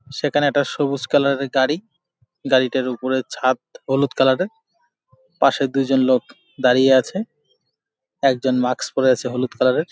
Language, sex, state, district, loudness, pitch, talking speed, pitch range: Bengali, male, West Bengal, Jalpaiguri, -19 LUFS, 135 Hz, 145 wpm, 130-145 Hz